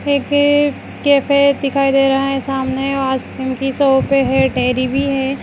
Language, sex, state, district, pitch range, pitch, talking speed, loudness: Kumaoni, female, Uttarakhand, Uttarkashi, 265-280 Hz, 275 Hz, 165 wpm, -15 LUFS